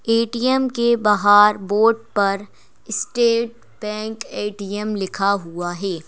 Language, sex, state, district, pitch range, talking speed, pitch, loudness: Hindi, female, Madhya Pradesh, Bhopal, 200-230 Hz, 110 wpm, 210 Hz, -19 LUFS